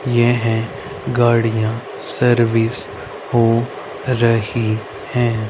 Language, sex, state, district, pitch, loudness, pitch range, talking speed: Hindi, male, Haryana, Rohtak, 115 Hz, -17 LUFS, 115-120 Hz, 65 wpm